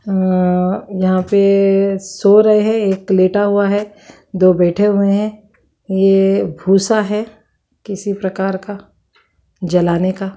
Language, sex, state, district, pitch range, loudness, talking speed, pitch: Kumaoni, female, Uttarakhand, Uttarkashi, 190-205 Hz, -14 LUFS, 125 wpm, 195 Hz